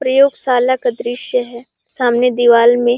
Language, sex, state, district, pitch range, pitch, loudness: Hindi, female, Chhattisgarh, Sarguja, 240-260 Hz, 245 Hz, -14 LUFS